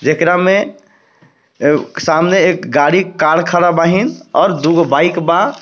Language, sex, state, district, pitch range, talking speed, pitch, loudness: Bhojpuri, male, Jharkhand, Palamu, 165-185 Hz, 140 wpm, 170 Hz, -12 LUFS